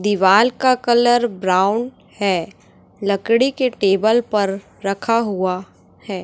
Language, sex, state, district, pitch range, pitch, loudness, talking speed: Hindi, female, Chhattisgarh, Raipur, 190-235 Hz, 205 Hz, -18 LUFS, 115 wpm